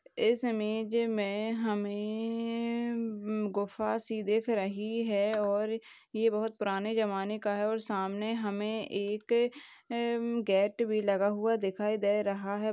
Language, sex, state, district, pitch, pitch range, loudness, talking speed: Hindi, female, Maharashtra, Sindhudurg, 215 Hz, 205-230 Hz, -32 LUFS, 140 wpm